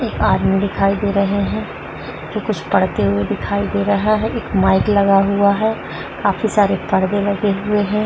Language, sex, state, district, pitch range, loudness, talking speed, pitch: Hindi, female, Uttar Pradesh, Budaun, 195-210 Hz, -17 LUFS, 185 wpm, 200 Hz